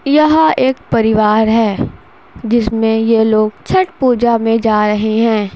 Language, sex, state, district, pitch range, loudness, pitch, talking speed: Hindi, female, Bihar, Darbhanga, 220-245 Hz, -13 LUFS, 225 Hz, 140 wpm